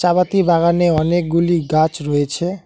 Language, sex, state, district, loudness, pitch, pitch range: Bengali, male, West Bengal, Alipurduar, -16 LUFS, 170 Hz, 155-175 Hz